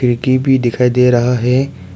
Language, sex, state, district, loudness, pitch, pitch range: Hindi, male, Arunachal Pradesh, Papum Pare, -13 LUFS, 125 Hz, 120-130 Hz